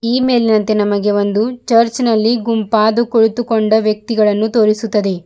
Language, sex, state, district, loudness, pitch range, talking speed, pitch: Kannada, female, Karnataka, Bidar, -14 LUFS, 215-230 Hz, 100 wpm, 220 Hz